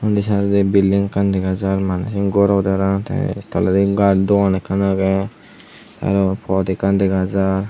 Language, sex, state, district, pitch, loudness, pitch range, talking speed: Chakma, male, Tripura, Unakoti, 95 Hz, -17 LUFS, 95-100 Hz, 180 wpm